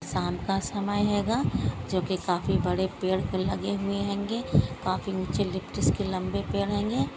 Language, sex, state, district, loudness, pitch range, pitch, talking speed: Hindi, female, Maharashtra, Pune, -28 LUFS, 185-200 Hz, 190 Hz, 160 wpm